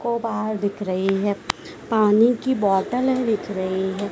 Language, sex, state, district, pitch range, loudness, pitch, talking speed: Hindi, female, Madhya Pradesh, Dhar, 195-230 Hz, -22 LUFS, 210 Hz, 160 wpm